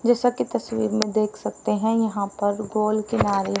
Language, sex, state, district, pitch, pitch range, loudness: Hindi, female, Haryana, Rohtak, 215 Hz, 200-220 Hz, -23 LUFS